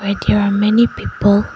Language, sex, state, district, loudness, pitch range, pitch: English, female, Arunachal Pradesh, Lower Dibang Valley, -15 LUFS, 200-210 Hz, 205 Hz